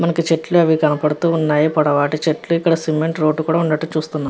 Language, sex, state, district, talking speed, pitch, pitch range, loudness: Telugu, female, Andhra Pradesh, Visakhapatnam, 180 wpm, 160 Hz, 155-165 Hz, -17 LUFS